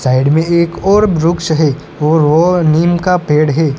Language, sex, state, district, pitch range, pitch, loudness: Hindi, female, Gujarat, Gandhinagar, 150-175 Hz, 160 Hz, -12 LUFS